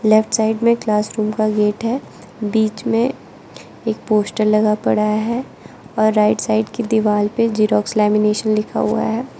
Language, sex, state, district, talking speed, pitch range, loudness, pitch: Hindi, female, Arunachal Pradesh, Lower Dibang Valley, 165 wpm, 210-225 Hz, -18 LUFS, 215 Hz